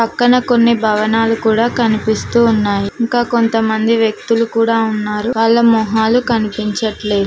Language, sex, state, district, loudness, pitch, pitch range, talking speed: Telugu, female, Telangana, Mahabubabad, -14 LUFS, 225 Hz, 215-235 Hz, 115 wpm